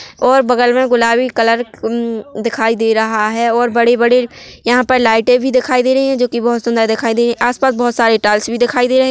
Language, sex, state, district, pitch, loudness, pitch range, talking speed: Hindi, female, Chhattisgarh, Korba, 240 Hz, -13 LUFS, 230-250 Hz, 230 wpm